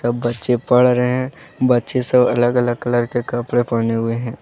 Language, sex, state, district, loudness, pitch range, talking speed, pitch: Hindi, male, Jharkhand, Deoghar, -17 LUFS, 120-125 Hz, 190 wpm, 120 Hz